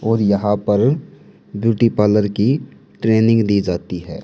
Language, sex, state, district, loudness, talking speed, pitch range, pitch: Hindi, male, Haryana, Jhajjar, -17 LUFS, 140 wpm, 100-115 Hz, 105 Hz